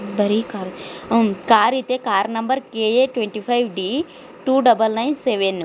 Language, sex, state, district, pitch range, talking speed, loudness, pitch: Kannada, female, Karnataka, Dharwad, 205-255 Hz, 140 wpm, -19 LUFS, 225 Hz